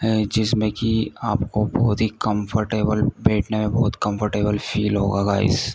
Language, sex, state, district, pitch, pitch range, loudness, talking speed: Hindi, male, Uttar Pradesh, Ghazipur, 110 Hz, 105-110 Hz, -21 LUFS, 165 wpm